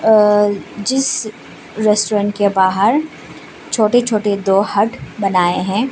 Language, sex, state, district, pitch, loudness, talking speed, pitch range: Hindi, female, Arunachal Pradesh, Lower Dibang Valley, 210 Hz, -15 LUFS, 110 wpm, 200-220 Hz